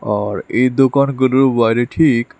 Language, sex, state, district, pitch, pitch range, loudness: Bengali, male, Tripura, West Tripura, 125 Hz, 115-135 Hz, -15 LUFS